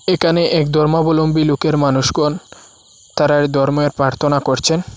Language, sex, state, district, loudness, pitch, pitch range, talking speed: Bengali, male, Assam, Hailakandi, -15 LUFS, 150 Hz, 145-160 Hz, 95 wpm